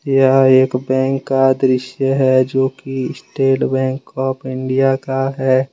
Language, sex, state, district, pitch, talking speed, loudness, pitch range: Hindi, male, Jharkhand, Deoghar, 130 Hz, 135 wpm, -16 LUFS, 130-135 Hz